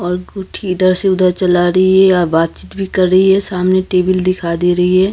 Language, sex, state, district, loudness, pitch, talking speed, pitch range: Hindi, female, Maharashtra, Gondia, -13 LUFS, 185 Hz, 220 wpm, 180-190 Hz